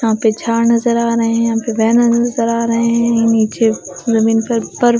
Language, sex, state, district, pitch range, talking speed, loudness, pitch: Hindi, female, Bihar, West Champaran, 225-235 Hz, 215 wpm, -14 LUFS, 230 Hz